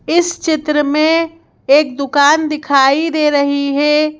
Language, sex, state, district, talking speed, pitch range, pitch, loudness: Hindi, female, Madhya Pradesh, Bhopal, 130 wpm, 285-315 Hz, 300 Hz, -13 LUFS